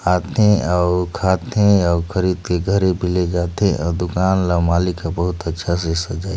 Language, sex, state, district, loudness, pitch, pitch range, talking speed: Chhattisgarhi, male, Chhattisgarh, Sarguja, -18 LUFS, 90 Hz, 85-95 Hz, 180 wpm